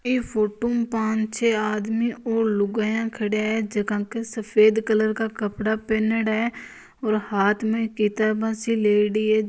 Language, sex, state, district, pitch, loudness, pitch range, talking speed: Marwari, female, Rajasthan, Nagaur, 220 Hz, -23 LUFS, 215-225 Hz, 145 wpm